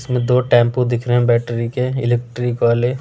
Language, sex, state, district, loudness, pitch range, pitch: Hindi, male, Delhi, New Delhi, -17 LUFS, 120-125 Hz, 120 Hz